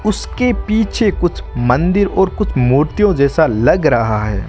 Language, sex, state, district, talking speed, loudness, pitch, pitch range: Hindi, male, Rajasthan, Bikaner, 145 wpm, -14 LUFS, 175 Hz, 125-210 Hz